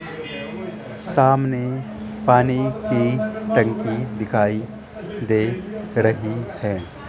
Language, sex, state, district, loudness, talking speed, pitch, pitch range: Hindi, male, Rajasthan, Jaipur, -21 LUFS, 70 wpm, 120 Hz, 110-130 Hz